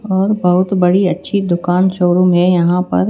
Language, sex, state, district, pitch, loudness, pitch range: Hindi, female, Chhattisgarh, Raipur, 180 Hz, -13 LUFS, 180-195 Hz